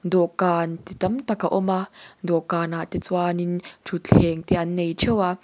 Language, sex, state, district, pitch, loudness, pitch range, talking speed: Mizo, female, Mizoram, Aizawl, 175 Hz, -23 LUFS, 170-185 Hz, 190 wpm